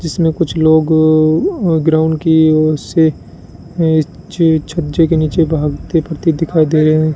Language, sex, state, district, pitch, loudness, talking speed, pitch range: Hindi, male, Rajasthan, Bikaner, 160 Hz, -13 LUFS, 150 wpm, 155-165 Hz